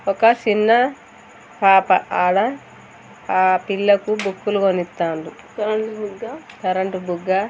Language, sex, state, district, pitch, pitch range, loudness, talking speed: Telugu, female, Andhra Pradesh, Chittoor, 195 Hz, 185-215 Hz, -19 LUFS, 80 wpm